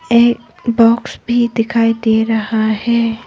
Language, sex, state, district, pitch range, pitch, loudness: Hindi, female, Arunachal Pradesh, Papum Pare, 225-235 Hz, 230 Hz, -14 LUFS